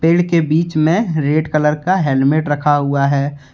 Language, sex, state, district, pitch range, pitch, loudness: Hindi, male, Jharkhand, Deoghar, 145-165 Hz, 150 Hz, -15 LUFS